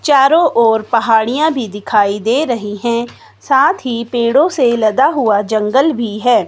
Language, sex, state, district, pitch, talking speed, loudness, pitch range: Hindi, female, Himachal Pradesh, Shimla, 235 Hz, 155 wpm, -13 LUFS, 220-265 Hz